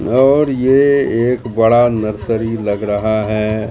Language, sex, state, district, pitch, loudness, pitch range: Hindi, male, Bihar, Katihar, 115 Hz, -14 LUFS, 110-125 Hz